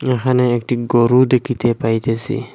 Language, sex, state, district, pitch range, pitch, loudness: Bengali, male, Assam, Hailakandi, 120-125 Hz, 125 Hz, -16 LUFS